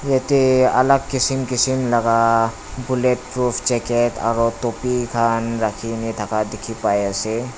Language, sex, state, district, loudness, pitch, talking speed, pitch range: Nagamese, male, Nagaland, Dimapur, -19 LUFS, 120 Hz, 135 wpm, 115-130 Hz